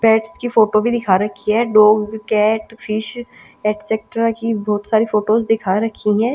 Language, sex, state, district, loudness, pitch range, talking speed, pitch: Hindi, female, Punjab, Pathankot, -17 LUFS, 210-225 Hz, 170 wpm, 220 Hz